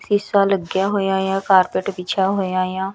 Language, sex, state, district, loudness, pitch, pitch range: Punjabi, female, Punjab, Kapurthala, -19 LUFS, 195 Hz, 190-200 Hz